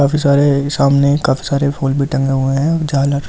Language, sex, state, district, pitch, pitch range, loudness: Hindi, male, Delhi, New Delhi, 140 Hz, 140-145 Hz, -14 LUFS